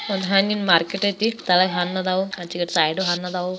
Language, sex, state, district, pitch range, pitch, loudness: Kannada, female, Karnataka, Belgaum, 175-195 Hz, 185 Hz, -21 LUFS